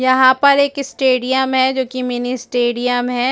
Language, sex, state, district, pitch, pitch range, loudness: Hindi, female, Chhattisgarh, Rajnandgaon, 260 Hz, 250-265 Hz, -16 LUFS